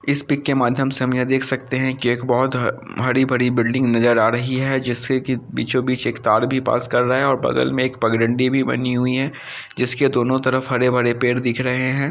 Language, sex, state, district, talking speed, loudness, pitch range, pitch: Hindi, male, Bihar, Samastipur, 225 wpm, -19 LUFS, 125-130 Hz, 130 Hz